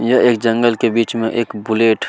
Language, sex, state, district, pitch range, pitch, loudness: Hindi, male, Chhattisgarh, Kabirdham, 115-120 Hz, 115 Hz, -16 LUFS